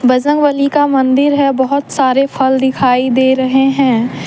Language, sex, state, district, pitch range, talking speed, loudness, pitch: Hindi, female, Jharkhand, Deoghar, 260-280 Hz, 155 wpm, -12 LUFS, 265 Hz